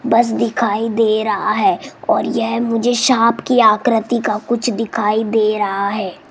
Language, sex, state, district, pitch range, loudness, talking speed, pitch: Hindi, female, Rajasthan, Jaipur, 215-235 Hz, -16 LUFS, 160 wpm, 225 Hz